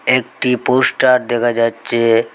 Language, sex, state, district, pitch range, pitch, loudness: Bengali, male, Assam, Hailakandi, 115-125 Hz, 120 Hz, -15 LUFS